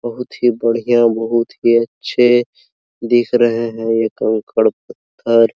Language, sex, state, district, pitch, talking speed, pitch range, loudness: Hindi, male, Bihar, Araria, 115 Hz, 130 wpm, 115-120 Hz, -15 LUFS